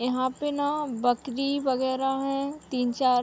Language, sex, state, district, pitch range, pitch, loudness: Hindi, female, Uttar Pradesh, Hamirpur, 250-280 Hz, 265 Hz, -27 LUFS